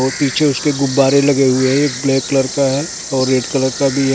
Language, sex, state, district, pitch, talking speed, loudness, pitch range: Hindi, male, Maharashtra, Mumbai Suburban, 135 Hz, 260 wpm, -15 LUFS, 130-140 Hz